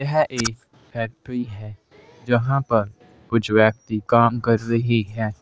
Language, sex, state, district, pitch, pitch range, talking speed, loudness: Hindi, male, Uttar Pradesh, Saharanpur, 115 Hz, 110-120 Hz, 135 wpm, -21 LUFS